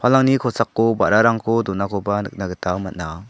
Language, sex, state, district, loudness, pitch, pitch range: Garo, male, Meghalaya, South Garo Hills, -19 LUFS, 105 Hz, 95-115 Hz